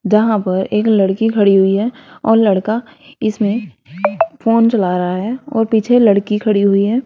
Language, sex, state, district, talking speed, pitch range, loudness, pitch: Hindi, female, Haryana, Rohtak, 170 wpm, 200-230 Hz, -15 LUFS, 215 Hz